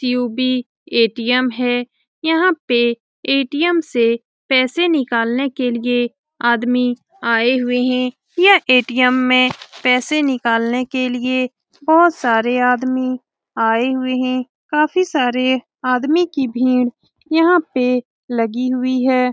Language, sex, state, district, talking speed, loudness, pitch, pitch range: Hindi, female, Bihar, Saran, 120 wpm, -17 LUFS, 255 Hz, 245-275 Hz